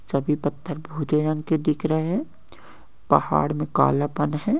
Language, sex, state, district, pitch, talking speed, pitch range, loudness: Hindi, male, Maharashtra, Nagpur, 155 Hz, 170 wpm, 150-160 Hz, -23 LUFS